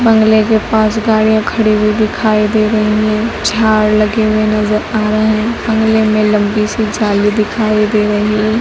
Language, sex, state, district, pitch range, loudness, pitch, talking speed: Hindi, female, Madhya Pradesh, Dhar, 210-220 Hz, -12 LUFS, 215 Hz, 180 wpm